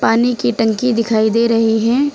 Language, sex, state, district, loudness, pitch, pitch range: Hindi, female, Uttar Pradesh, Lucknow, -15 LUFS, 230 Hz, 225-245 Hz